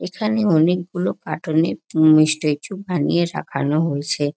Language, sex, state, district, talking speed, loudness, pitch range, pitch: Bengali, female, West Bengal, North 24 Parganas, 150 wpm, -19 LUFS, 155-180 Hz, 160 Hz